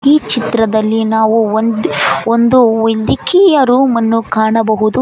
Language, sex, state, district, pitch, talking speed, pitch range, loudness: Kannada, female, Karnataka, Koppal, 225 Hz, 130 wpm, 220-250 Hz, -11 LUFS